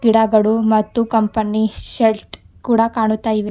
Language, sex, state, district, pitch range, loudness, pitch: Kannada, female, Karnataka, Bidar, 215-225 Hz, -17 LUFS, 220 Hz